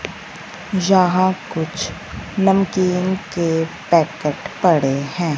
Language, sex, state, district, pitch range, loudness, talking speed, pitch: Hindi, female, Punjab, Fazilka, 160-190 Hz, -18 LUFS, 80 wpm, 180 Hz